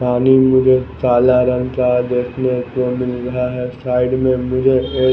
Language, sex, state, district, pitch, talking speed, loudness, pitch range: Hindi, male, Bihar, West Champaran, 125 Hz, 165 wpm, -16 LUFS, 125-130 Hz